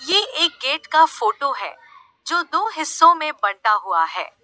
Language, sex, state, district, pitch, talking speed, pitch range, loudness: Hindi, female, Uttar Pradesh, Lalitpur, 305 Hz, 175 wpm, 225-340 Hz, -19 LUFS